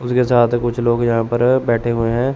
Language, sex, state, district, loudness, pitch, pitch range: Hindi, male, Chandigarh, Chandigarh, -16 LUFS, 120 Hz, 120-125 Hz